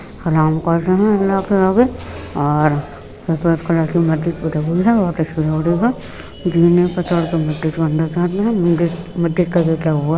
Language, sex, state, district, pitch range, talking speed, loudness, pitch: Hindi, female, Uttar Pradesh, Etah, 160-180 Hz, 80 wpm, -17 LUFS, 170 Hz